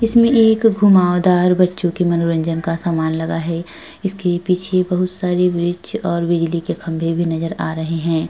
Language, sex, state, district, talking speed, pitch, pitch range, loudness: Hindi, female, Uttar Pradesh, Jalaun, 175 wpm, 175 Hz, 165-180 Hz, -17 LUFS